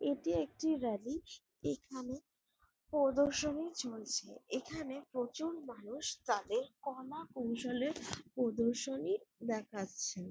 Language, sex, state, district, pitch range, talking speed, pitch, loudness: Bengali, female, West Bengal, Jalpaiguri, 235-300 Hz, 80 wpm, 265 Hz, -39 LUFS